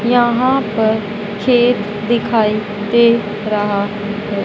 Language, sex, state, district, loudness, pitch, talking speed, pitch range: Hindi, female, Madhya Pradesh, Dhar, -16 LUFS, 215 Hz, 95 wpm, 210-235 Hz